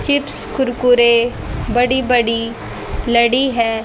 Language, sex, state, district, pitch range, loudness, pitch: Hindi, female, Haryana, Rohtak, 235-255 Hz, -15 LUFS, 245 Hz